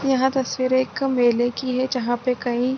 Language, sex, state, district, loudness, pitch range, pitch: Hindi, female, Bihar, Gopalganj, -21 LUFS, 245-260 Hz, 255 Hz